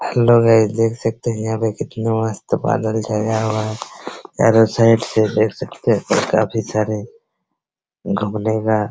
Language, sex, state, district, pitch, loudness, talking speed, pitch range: Hindi, male, Bihar, Araria, 110 Hz, -18 LUFS, 170 wpm, 110-115 Hz